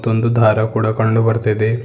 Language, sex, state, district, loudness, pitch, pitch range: Kannada, male, Karnataka, Bidar, -15 LUFS, 110 Hz, 110-115 Hz